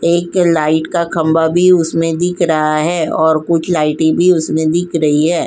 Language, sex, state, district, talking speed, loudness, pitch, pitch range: Hindi, female, Uttar Pradesh, Jyotiba Phule Nagar, 185 wpm, -13 LUFS, 165 Hz, 160-175 Hz